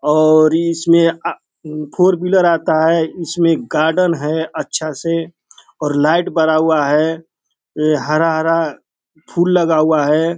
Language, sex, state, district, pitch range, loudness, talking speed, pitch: Hindi, male, Uttar Pradesh, Ghazipur, 155-165 Hz, -15 LUFS, 145 wpm, 160 Hz